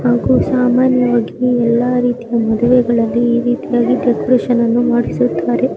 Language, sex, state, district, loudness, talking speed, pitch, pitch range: Kannada, male, Karnataka, Bijapur, -14 LUFS, 95 wpm, 240 Hz, 235-250 Hz